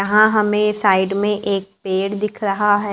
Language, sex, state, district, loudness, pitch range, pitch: Hindi, female, Maharashtra, Gondia, -18 LUFS, 195-210 Hz, 205 Hz